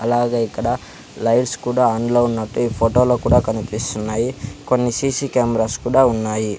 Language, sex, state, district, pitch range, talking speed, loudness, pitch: Telugu, male, Andhra Pradesh, Sri Satya Sai, 110-125 Hz, 155 wpm, -18 LUFS, 120 Hz